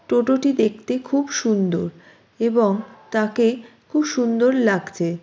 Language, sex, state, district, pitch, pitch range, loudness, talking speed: Bengali, female, West Bengal, Jalpaiguri, 230 Hz, 215-250 Hz, -20 LUFS, 105 wpm